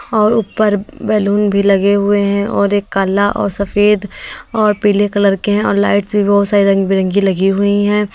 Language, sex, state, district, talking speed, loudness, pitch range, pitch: Hindi, female, Uttar Pradesh, Lalitpur, 200 wpm, -13 LUFS, 200-210 Hz, 205 Hz